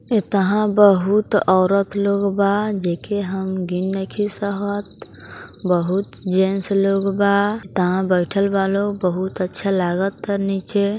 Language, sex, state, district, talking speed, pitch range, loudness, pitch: Hindi, female, Bihar, East Champaran, 130 wpm, 190-200 Hz, -19 LUFS, 195 Hz